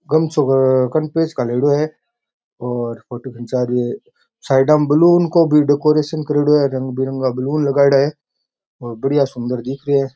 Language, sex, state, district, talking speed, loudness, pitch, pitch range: Rajasthani, male, Rajasthan, Nagaur, 175 wpm, -16 LUFS, 140 Hz, 130-150 Hz